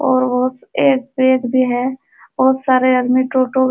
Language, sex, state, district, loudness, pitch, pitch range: Hindi, female, Uttar Pradesh, Jalaun, -16 LUFS, 255 Hz, 255-260 Hz